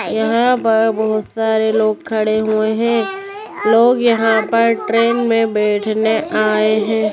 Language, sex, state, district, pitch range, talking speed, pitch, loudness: Hindi, male, Bihar, Gaya, 215-230 Hz, 135 wpm, 220 Hz, -15 LUFS